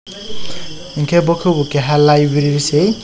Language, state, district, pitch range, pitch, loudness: Kokborok, Tripura, West Tripura, 145-175 Hz, 155 Hz, -14 LUFS